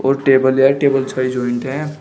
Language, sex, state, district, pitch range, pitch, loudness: Hindi, male, Uttar Pradesh, Shamli, 130-140 Hz, 135 Hz, -15 LUFS